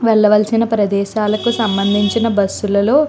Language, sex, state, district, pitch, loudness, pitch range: Telugu, female, Andhra Pradesh, Chittoor, 210 Hz, -15 LUFS, 205-225 Hz